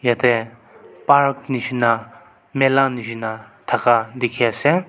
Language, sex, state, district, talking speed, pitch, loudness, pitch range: Nagamese, male, Nagaland, Kohima, 85 wpm, 120 Hz, -19 LUFS, 115-135 Hz